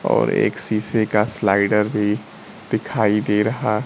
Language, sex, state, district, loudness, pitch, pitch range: Hindi, female, Bihar, Kaimur, -20 LUFS, 105 Hz, 105-110 Hz